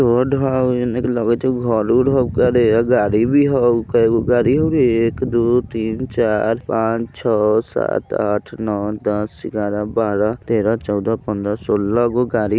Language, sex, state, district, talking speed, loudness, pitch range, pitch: Bajjika, male, Bihar, Vaishali, 160 wpm, -17 LUFS, 110-125 Hz, 115 Hz